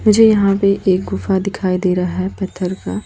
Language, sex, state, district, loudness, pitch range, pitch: Hindi, female, Chhattisgarh, Raipur, -16 LUFS, 185-200 Hz, 190 Hz